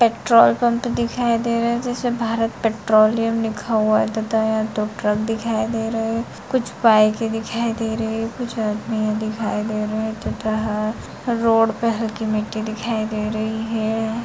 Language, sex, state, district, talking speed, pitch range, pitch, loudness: Hindi, female, Bihar, Saharsa, 180 wpm, 215-230 Hz, 225 Hz, -20 LUFS